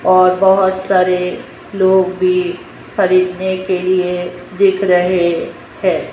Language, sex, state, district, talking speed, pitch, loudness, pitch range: Hindi, female, Rajasthan, Jaipur, 110 wpm, 185 Hz, -14 LUFS, 180-190 Hz